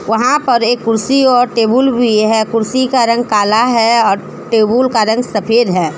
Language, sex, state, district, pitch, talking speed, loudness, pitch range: Hindi, female, Jharkhand, Deoghar, 230 Hz, 190 wpm, -12 LUFS, 220-245 Hz